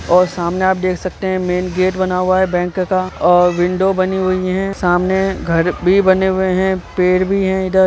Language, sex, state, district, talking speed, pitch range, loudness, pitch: Hindi, male, Bihar, Vaishali, 220 wpm, 180-190 Hz, -15 LUFS, 185 Hz